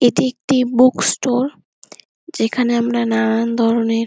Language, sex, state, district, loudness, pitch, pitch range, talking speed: Bengali, female, West Bengal, Kolkata, -17 LUFS, 240 Hz, 230-255 Hz, 135 wpm